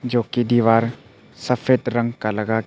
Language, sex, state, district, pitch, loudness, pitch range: Hindi, male, Arunachal Pradesh, Papum Pare, 120 Hz, -20 LUFS, 115-125 Hz